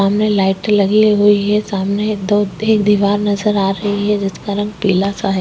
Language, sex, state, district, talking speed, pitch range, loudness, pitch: Hindi, female, Chhattisgarh, Korba, 200 wpm, 195-210 Hz, -15 LUFS, 205 Hz